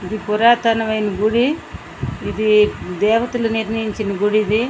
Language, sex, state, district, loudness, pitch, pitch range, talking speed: Telugu, female, Andhra Pradesh, Srikakulam, -18 LUFS, 215 Hz, 210-230 Hz, 115 wpm